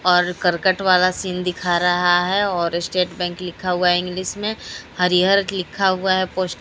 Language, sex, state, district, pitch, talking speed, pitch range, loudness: Hindi, female, Odisha, Sambalpur, 180 Hz, 180 wpm, 180-185 Hz, -19 LUFS